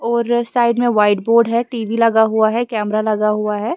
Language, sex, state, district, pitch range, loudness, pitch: Hindi, female, Himachal Pradesh, Shimla, 215-235 Hz, -16 LUFS, 225 Hz